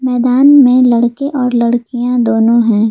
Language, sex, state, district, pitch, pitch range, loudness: Hindi, female, Jharkhand, Palamu, 245 Hz, 235-255 Hz, -10 LUFS